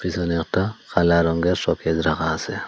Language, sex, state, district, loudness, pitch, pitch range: Bengali, male, Assam, Hailakandi, -21 LUFS, 85 Hz, 80-90 Hz